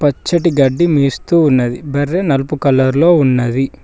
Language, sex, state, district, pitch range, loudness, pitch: Telugu, male, Telangana, Mahabubabad, 135-165 Hz, -13 LUFS, 140 Hz